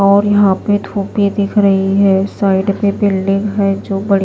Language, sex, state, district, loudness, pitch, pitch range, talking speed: Hindi, female, Maharashtra, Washim, -14 LUFS, 200 Hz, 195-205 Hz, 210 wpm